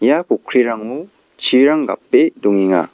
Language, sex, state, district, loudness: Garo, male, Meghalaya, West Garo Hills, -15 LUFS